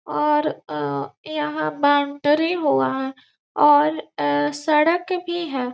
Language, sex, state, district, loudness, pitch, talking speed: Hindi, female, Bihar, Gopalganj, -21 LUFS, 290 Hz, 115 wpm